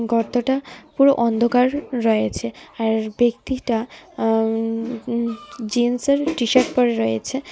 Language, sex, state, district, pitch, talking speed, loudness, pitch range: Bengali, female, Tripura, West Tripura, 240 Hz, 95 wpm, -20 LUFS, 225-260 Hz